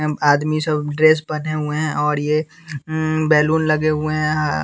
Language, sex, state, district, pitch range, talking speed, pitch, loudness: Hindi, male, Bihar, West Champaran, 150-155 Hz, 195 wpm, 155 Hz, -18 LUFS